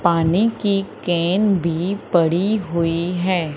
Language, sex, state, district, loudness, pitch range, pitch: Hindi, female, Madhya Pradesh, Umaria, -19 LUFS, 170-200 Hz, 175 Hz